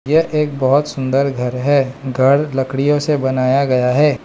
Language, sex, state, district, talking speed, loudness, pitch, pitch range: Hindi, male, Arunachal Pradesh, Lower Dibang Valley, 170 wpm, -16 LUFS, 135 Hz, 130-145 Hz